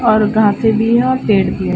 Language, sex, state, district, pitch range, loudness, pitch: Hindi, female, Uttar Pradesh, Ghazipur, 215-235 Hz, -13 LUFS, 225 Hz